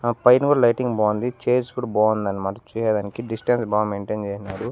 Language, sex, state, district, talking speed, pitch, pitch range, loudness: Telugu, male, Andhra Pradesh, Annamaya, 180 wpm, 115 Hz, 105-120 Hz, -21 LUFS